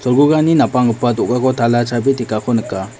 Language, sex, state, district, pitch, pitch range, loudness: Garo, male, Meghalaya, West Garo Hills, 125 Hz, 120-130 Hz, -15 LUFS